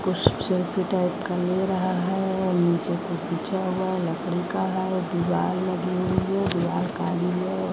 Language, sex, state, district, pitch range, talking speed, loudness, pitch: Hindi, female, Bihar, Kaimur, 175-185 Hz, 180 wpm, -25 LUFS, 185 Hz